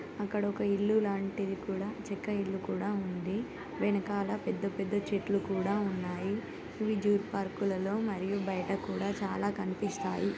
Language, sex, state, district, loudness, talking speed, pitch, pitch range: Telugu, female, Telangana, Nalgonda, -33 LUFS, 140 wpm, 200 Hz, 195-205 Hz